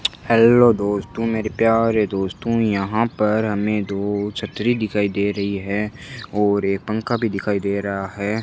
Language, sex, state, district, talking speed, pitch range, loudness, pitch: Hindi, male, Rajasthan, Bikaner, 155 wpm, 100-115 Hz, -20 LUFS, 105 Hz